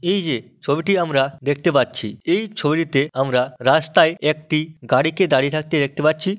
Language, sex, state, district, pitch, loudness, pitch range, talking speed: Bengali, male, West Bengal, Malda, 155 Hz, -19 LUFS, 140-165 Hz, 160 wpm